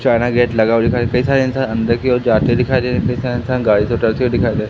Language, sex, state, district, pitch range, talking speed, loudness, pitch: Hindi, male, Madhya Pradesh, Katni, 115-125 Hz, 320 wpm, -15 LUFS, 120 Hz